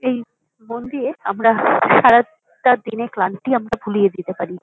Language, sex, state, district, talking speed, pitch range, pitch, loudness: Bengali, female, West Bengal, Kolkata, 145 wpm, 200-250 Hz, 230 Hz, -17 LUFS